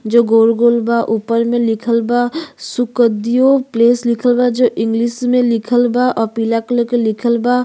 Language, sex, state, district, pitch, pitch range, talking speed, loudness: Bhojpuri, female, Uttar Pradesh, Gorakhpur, 235 Hz, 230-245 Hz, 180 wpm, -14 LUFS